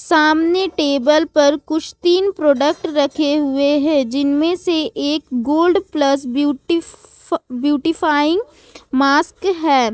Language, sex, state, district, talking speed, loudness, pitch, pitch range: Hindi, female, Jharkhand, Ranchi, 125 wpm, -17 LUFS, 305 Hz, 285-335 Hz